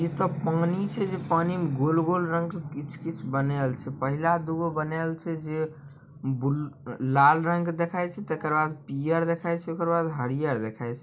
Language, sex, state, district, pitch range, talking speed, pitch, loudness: Maithili, male, Bihar, Samastipur, 140-170 Hz, 180 wpm, 160 Hz, -27 LUFS